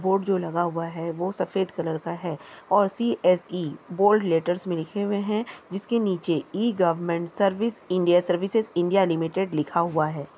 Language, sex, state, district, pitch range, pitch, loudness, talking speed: Hindi, female, Chhattisgarh, Kabirdham, 170-195 Hz, 180 Hz, -25 LUFS, 185 wpm